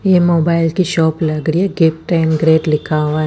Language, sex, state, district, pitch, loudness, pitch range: Hindi, female, Chandigarh, Chandigarh, 160 Hz, -14 LUFS, 155-170 Hz